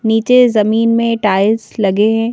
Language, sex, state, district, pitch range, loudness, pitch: Hindi, female, Madhya Pradesh, Bhopal, 210-230 Hz, -13 LUFS, 225 Hz